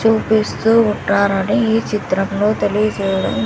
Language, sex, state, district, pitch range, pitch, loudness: Telugu, female, Andhra Pradesh, Sri Satya Sai, 195-220 Hz, 210 Hz, -16 LUFS